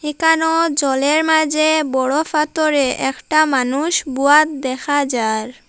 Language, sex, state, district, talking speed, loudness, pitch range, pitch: Bengali, female, Assam, Hailakandi, 105 wpm, -16 LUFS, 265-310 Hz, 300 Hz